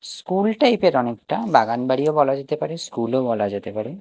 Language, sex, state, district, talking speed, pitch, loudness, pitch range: Bengali, male, Odisha, Nuapada, 180 wpm, 130 Hz, -21 LUFS, 115-180 Hz